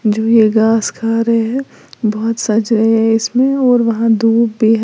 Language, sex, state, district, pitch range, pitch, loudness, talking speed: Hindi, female, Uttar Pradesh, Lalitpur, 220-230 Hz, 225 Hz, -13 LUFS, 150 wpm